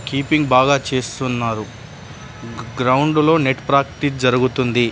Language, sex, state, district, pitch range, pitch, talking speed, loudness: Telugu, male, Telangana, Adilabad, 125-140 Hz, 130 Hz, 100 wpm, -17 LUFS